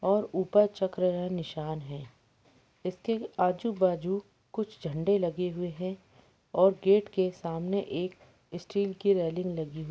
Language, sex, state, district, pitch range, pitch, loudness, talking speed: Hindi, male, Jharkhand, Jamtara, 165-200 Hz, 180 Hz, -30 LUFS, 140 wpm